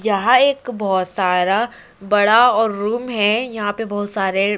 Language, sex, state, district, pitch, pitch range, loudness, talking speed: Hindi, female, Andhra Pradesh, Chittoor, 210 Hz, 200-235 Hz, -17 LUFS, 155 wpm